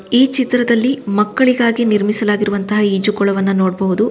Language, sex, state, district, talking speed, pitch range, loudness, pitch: Kannada, female, Karnataka, Shimoga, 85 wpm, 200-240 Hz, -15 LUFS, 210 Hz